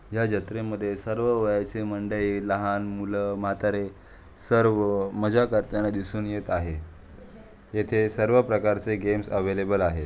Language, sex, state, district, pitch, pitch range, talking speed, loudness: Marathi, male, Maharashtra, Aurangabad, 105 Hz, 100-110 Hz, 130 wpm, -26 LUFS